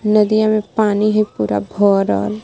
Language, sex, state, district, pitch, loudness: Magahi, female, Jharkhand, Palamu, 210 Hz, -16 LUFS